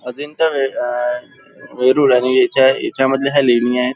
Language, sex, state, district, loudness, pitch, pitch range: Marathi, male, Maharashtra, Nagpur, -15 LUFS, 130 Hz, 125-140 Hz